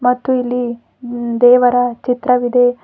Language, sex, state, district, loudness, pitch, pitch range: Kannada, female, Karnataka, Bidar, -14 LUFS, 245 Hz, 245-250 Hz